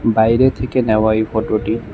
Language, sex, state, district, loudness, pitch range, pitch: Bengali, male, Tripura, West Tripura, -16 LUFS, 110-115 Hz, 110 Hz